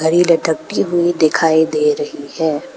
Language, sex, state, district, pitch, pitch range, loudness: Hindi, female, Arunachal Pradesh, Papum Pare, 160 Hz, 150-170 Hz, -15 LUFS